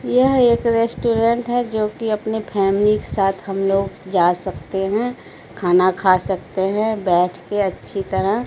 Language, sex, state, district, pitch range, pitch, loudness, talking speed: Hindi, female, Bihar, Katihar, 190-225 Hz, 200 Hz, -19 LUFS, 155 wpm